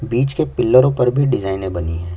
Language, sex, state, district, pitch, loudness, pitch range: Hindi, male, Chhattisgarh, Kabirdham, 125 Hz, -17 LUFS, 95-135 Hz